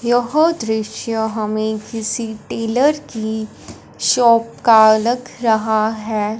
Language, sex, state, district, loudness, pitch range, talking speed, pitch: Hindi, female, Punjab, Fazilka, -17 LUFS, 220-235 Hz, 105 wpm, 225 Hz